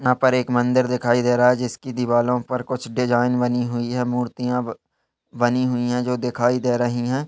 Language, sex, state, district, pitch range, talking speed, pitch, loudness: Hindi, male, Chhattisgarh, Balrampur, 120-125 Hz, 205 wpm, 125 Hz, -21 LUFS